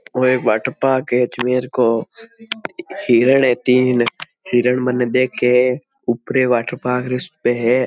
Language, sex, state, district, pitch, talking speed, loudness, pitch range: Marwari, male, Rajasthan, Nagaur, 125 Hz, 120 wpm, -17 LUFS, 125-130 Hz